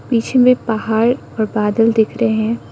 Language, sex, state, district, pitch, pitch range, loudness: Hindi, female, Arunachal Pradesh, Lower Dibang Valley, 220 Hz, 210-235 Hz, -16 LUFS